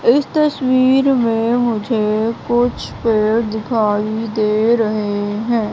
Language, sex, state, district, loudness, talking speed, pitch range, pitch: Hindi, female, Madhya Pradesh, Katni, -16 LUFS, 105 wpm, 215-240 Hz, 225 Hz